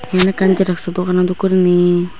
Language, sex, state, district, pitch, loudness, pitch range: Chakma, female, Tripura, West Tripura, 180 Hz, -15 LUFS, 175-185 Hz